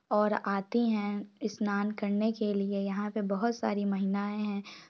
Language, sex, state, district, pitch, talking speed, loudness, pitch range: Hindi, female, Chhattisgarh, Sukma, 205 Hz, 160 wpm, -31 LUFS, 200-215 Hz